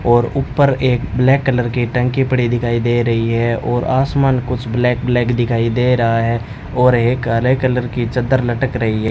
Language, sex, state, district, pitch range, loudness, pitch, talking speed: Hindi, male, Rajasthan, Bikaner, 115-130 Hz, -16 LUFS, 120 Hz, 195 wpm